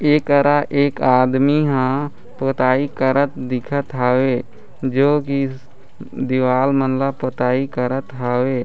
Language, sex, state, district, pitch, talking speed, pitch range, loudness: Chhattisgarhi, male, Chhattisgarh, Raigarh, 130 Hz, 110 wpm, 130-140 Hz, -18 LUFS